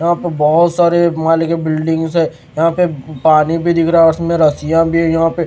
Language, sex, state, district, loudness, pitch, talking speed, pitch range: Hindi, male, Maharashtra, Mumbai Suburban, -13 LUFS, 165 Hz, 240 wpm, 160-170 Hz